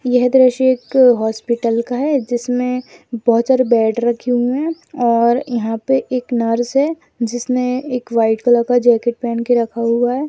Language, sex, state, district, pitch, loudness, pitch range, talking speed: Hindi, female, Rajasthan, Nagaur, 245 Hz, -16 LUFS, 235-255 Hz, 175 wpm